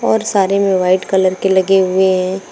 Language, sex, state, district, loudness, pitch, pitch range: Hindi, female, Uttar Pradesh, Shamli, -14 LUFS, 190 Hz, 185-195 Hz